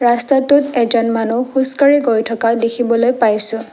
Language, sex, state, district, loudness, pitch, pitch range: Assamese, female, Assam, Kamrup Metropolitan, -14 LUFS, 235 Hz, 230-265 Hz